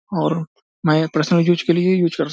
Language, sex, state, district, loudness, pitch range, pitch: Hindi, male, Bihar, Samastipur, -18 LUFS, 160-175 Hz, 165 Hz